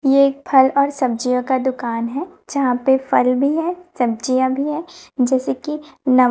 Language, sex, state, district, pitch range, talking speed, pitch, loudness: Hindi, female, Chhattisgarh, Raipur, 250-290 Hz, 190 wpm, 265 Hz, -18 LUFS